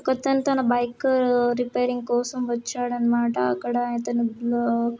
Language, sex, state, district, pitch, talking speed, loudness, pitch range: Telugu, female, Telangana, Karimnagar, 240 Hz, 120 wpm, -23 LUFS, 235-250 Hz